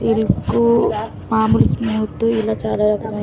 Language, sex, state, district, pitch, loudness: Telugu, female, Andhra Pradesh, Sri Satya Sai, 210 Hz, -18 LUFS